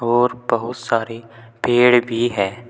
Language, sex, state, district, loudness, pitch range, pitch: Hindi, male, Uttar Pradesh, Saharanpur, -18 LUFS, 115-120 Hz, 115 Hz